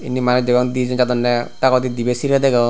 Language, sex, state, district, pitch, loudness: Chakma, male, Tripura, Unakoti, 125 Hz, -17 LUFS